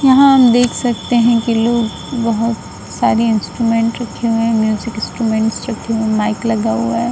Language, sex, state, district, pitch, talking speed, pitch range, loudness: Hindi, female, Uttar Pradesh, Budaun, 230 Hz, 185 wpm, 225-235 Hz, -15 LUFS